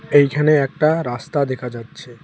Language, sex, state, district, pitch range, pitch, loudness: Bengali, male, West Bengal, Alipurduar, 125-150 Hz, 140 Hz, -18 LUFS